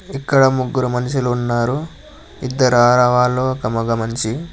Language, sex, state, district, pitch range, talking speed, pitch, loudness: Telugu, male, Telangana, Hyderabad, 120-130 Hz, 105 wpm, 125 Hz, -17 LUFS